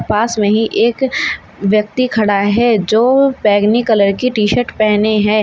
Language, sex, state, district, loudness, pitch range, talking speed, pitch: Hindi, female, Uttar Pradesh, Lalitpur, -13 LUFS, 210-240 Hz, 165 wpm, 215 Hz